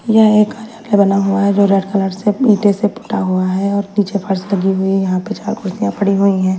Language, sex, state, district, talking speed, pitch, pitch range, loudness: Hindi, female, Delhi, New Delhi, 245 wpm, 200 Hz, 190-210 Hz, -15 LUFS